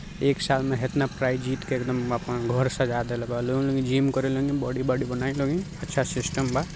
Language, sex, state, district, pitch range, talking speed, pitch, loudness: Bhojpuri, male, Bihar, Gopalganj, 125-135 Hz, 205 wpm, 130 Hz, -26 LUFS